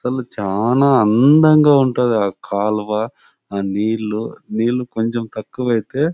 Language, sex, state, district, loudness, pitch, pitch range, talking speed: Telugu, male, Andhra Pradesh, Anantapur, -17 LUFS, 115 Hz, 105-125 Hz, 105 wpm